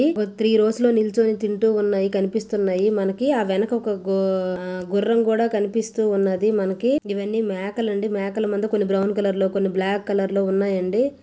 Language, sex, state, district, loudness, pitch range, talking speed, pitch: Telugu, female, Andhra Pradesh, Visakhapatnam, -21 LUFS, 195-220 Hz, 140 wpm, 205 Hz